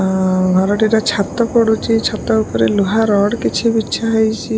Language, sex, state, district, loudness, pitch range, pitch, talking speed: Odia, female, Odisha, Malkangiri, -15 LUFS, 190-225 Hz, 220 Hz, 145 wpm